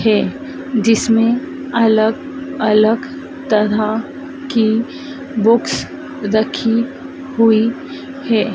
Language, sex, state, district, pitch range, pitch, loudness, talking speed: Hindi, female, Madhya Pradesh, Dhar, 225-280 Hz, 240 Hz, -16 LUFS, 70 wpm